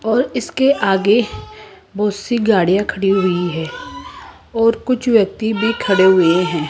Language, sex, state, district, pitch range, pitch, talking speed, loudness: Hindi, male, Rajasthan, Jaipur, 190-250 Hz, 220 Hz, 145 wpm, -16 LUFS